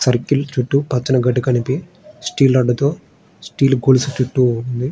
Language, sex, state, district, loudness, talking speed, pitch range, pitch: Telugu, male, Andhra Pradesh, Srikakulam, -17 LUFS, 145 wpm, 125-140 Hz, 130 Hz